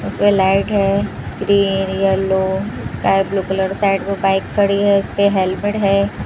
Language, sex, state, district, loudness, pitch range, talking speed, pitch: Hindi, female, Maharashtra, Mumbai Suburban, -17 LUFS, 195-200 Hz, 155 wpm, 195 Hz